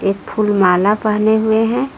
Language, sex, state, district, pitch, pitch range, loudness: Hindi, female, Jharkhand, Palamu, 215 Hz, 200-220 Hz, -15 LUFS